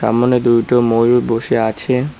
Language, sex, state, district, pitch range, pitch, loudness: Bengali, male, West Bengal, Cooch Behar, 115-125 Hz, 120 Hz, -14 LUFS